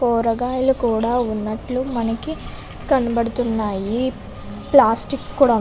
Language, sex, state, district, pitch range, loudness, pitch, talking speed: Telugu, female, Andhra Pradesh, Anantapur, 225-260 Hz, -20 LUFS, 235 Hz, 85 wpm